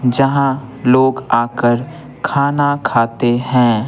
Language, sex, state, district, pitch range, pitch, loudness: Hindi, male, Bihar, Patna, 120-135 Hz, 130 Hz, -15 LUFS